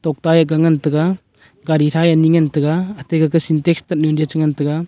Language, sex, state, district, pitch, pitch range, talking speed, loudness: Wancho, male, Arunachal Pradesh, Longding, 160 Hz, 150-165 Hz, 195 wpm, -16 LUFS